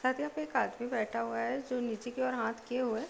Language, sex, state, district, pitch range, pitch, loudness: Hindi, female, Uttar Pradesh, Deoria, 230-255 Hz, 245 Hz, -35 LUFS